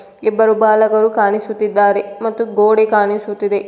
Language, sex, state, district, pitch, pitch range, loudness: Kannada, female, Karnataka, Koppal, 215 Hz, 205-220 Hz, -14 LUFS